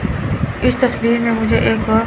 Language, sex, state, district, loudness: Hindi, female, Chandigarh, Chandigarh, -16 LUFS